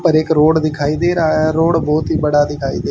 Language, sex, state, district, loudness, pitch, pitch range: Hindi, male, Haryana, Charkhi Dadri, -15 LUFS, 155 Hz, 150-160 Hz